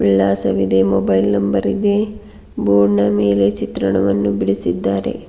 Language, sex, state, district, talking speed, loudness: Kannada, female, Karnataka, Bidar, 90 wpm, -16 LUFS